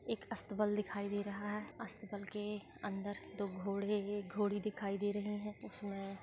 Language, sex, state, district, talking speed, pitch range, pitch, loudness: Hindi, female, Chhattisgarh, Sarguja, 165 wpm, 200-210 Hz, 205 Hz, -41 LUFS